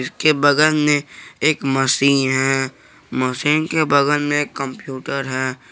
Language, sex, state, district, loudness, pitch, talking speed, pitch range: Hindi, male, Jharkhand, Garhwa, -18 LUFS, 140 Hz, 135 wpm, 130-150 Hz